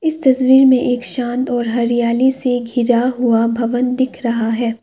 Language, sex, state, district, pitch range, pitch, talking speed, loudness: Hindi, female, Assam, Kamrup Metropolitan, 235-255 Hz, 245 Hz, 175 wpm, -15 LUFS